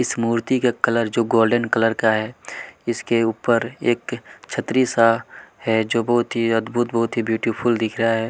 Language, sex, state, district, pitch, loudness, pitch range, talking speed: Hindi, male, Chhattisgarh, Kabirdham, 115 Hz, -20 LUFS, 115-120 Hz, 180 wpm